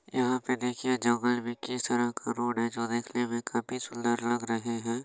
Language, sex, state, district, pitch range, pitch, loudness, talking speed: Maithili, male, Bihar, Supaul, 120-125 Hz, 120 Hz, -31 LUFS, 215 wpm